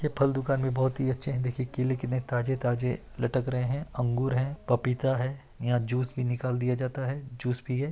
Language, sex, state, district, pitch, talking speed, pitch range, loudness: Hindi, male, Chhattisgarh, Bastar, 130 Hz, 225 wpm, 125-135 Hz, -29 LUFS